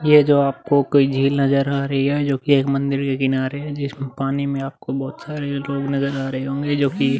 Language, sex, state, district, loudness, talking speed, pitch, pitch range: Hindi, male, Uttar Pradesh, Muzaffarnagar, -20 LUFS, 235 wpm, 140 Hz, 135-140 Hz